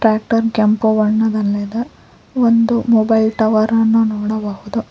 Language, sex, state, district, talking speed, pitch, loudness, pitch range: Kannada, female, Karnataka, Koppal, 110 wpm, 220 Hz, -15 LUFS, 215-225 Hz